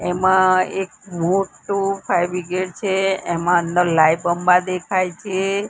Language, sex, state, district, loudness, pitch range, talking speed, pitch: Gujarati, female, Gujarat, Gandhinagar, -19 LUFS, 175-195 Hz, 115 wpm, 185 Hz